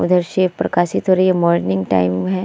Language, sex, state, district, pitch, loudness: Hindi, female, Bihar, Vaishali, 175 Hz, -16 LUFS